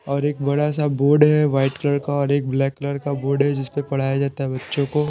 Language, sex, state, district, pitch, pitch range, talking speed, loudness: Hindi, male, Bihar, Patna, 140 Hz, 135-145 Hz, 270 wpm, -20 LUFS